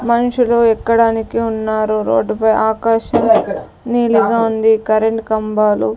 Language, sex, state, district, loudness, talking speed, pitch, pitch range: Telugu, female, Andhra Pradesh, Sri Satya Sai, -14 LUFS, 100 wpm, 225 Hz, 220-230 Hz